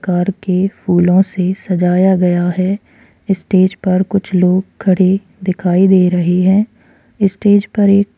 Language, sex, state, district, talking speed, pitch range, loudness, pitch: Hindi, female, Chhattisgarh, Kabirdham, 130 wpm, 180-195 Hz, -14 LUFS, 185 Hz